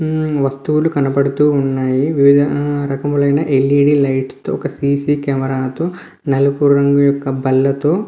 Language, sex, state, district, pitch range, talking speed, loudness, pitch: Telugu, male, Andhra Pradesh, Visakhapatnam, 135-145 Hz, 150 wpm, -15 LUFS, 140 Hz